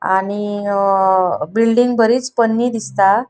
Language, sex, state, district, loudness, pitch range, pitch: Konkani, female, Goa, North and South Goa, -15 LUFS, 195-235 Hz, 205 Hz